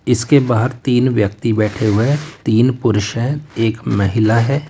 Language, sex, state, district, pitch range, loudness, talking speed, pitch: Hindi, male, Uttar Pradesh, Lalitpur, 110-130 Hz, -16 LUFS, 165 wpm, 115 Hz